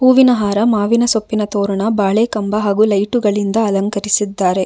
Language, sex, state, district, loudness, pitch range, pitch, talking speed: Kannada, female, Karnataka, Bangalore, -15 LUFS, 200-220 Hz, 210 Hz, 130 wpm